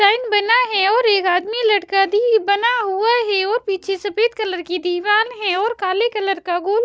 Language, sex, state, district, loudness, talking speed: Hindi, female, Chhattisgarh, Raipur, -17 LUFS, 210 wpm